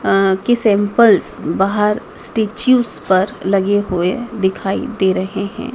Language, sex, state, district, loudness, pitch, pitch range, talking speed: Hindi, female, Madhya Pradesh, Dhar, -15 LUFS, 200 Hz, 190-225 Hz, 125 wpm